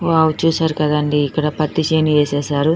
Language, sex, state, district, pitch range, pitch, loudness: Telugu, female, Telangana, Nalgonda, 150-160 Hz, 155 Hz, -17 LUFS